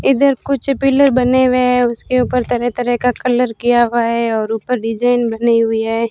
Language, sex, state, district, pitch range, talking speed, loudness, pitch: Hindi, female, Rajasthan, Bikaner, 235-255 Hz, 205 wpm, -15 LUFS, 245 Hz